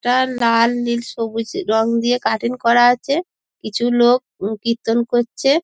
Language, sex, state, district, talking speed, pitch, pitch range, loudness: Bengali, female, West Bengal, Dakshin Dinajpur, 150 wpm, 235 Hz, 230-245 Hz, -18 LUFS